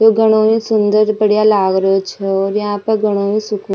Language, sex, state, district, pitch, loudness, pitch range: Rajasthani, female, Rajasthan, Nagaur, 210 Hz, -14 LUFS, 195-215 Hz